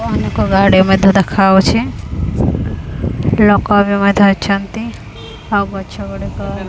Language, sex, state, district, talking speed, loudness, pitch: Odia, female, Odisha, Khordha, 105 wpm, -13 LUFS, 195 Hz